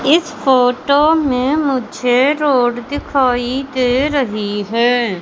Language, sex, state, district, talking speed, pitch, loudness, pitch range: Hindi, male, Madhya Pradesh, Katni, 105 wpm, 255 Hz, -15 LUFS, 245-285 Hz